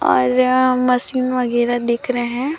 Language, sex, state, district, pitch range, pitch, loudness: Hindi, female, Chhattisgarh, Raipur, 240-255 Hz, 250 Hz, -17 LUFS